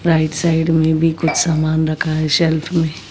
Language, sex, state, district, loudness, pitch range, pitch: Hindi, female, Bihar, West Champaran, -16 LUFS, 155-165 Hz, 160 Hz